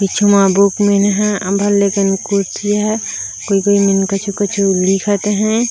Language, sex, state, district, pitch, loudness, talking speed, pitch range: Chhattisgarhi, female, Chhattisgarh, Raigarh, 200 Hz, -14 LUFS, 135 wpm, 195-205 Hz